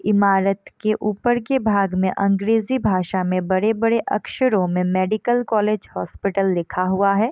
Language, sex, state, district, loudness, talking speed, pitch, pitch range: Hindi, female, Bihar, Sitamarhi, -20 LUFS, 145 wpm, 200 Hz, 185-220 Hz